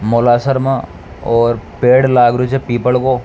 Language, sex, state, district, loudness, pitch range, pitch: Rajasthani, male, Rajasthan, Nagaur, -13 LUFS, 115-130 Hz, 120 Hz